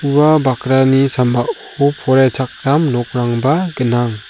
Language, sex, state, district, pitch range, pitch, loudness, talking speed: Garo, male, Meghalaya, South Garo Hills, 125-140 Hz, 130 Hz, -14 LUFS, 85 wpm